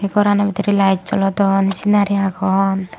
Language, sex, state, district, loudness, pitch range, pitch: Chakma, female, Tripura, Unakoti, -16 LUFS, 195-205 Hz, 200 Hz